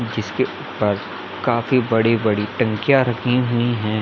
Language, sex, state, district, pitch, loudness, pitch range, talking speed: Hindi, male, Chhattisgarh, Bilaspur, 115 Hz, -19 LUFS, 110-125 Hz, 135 wpm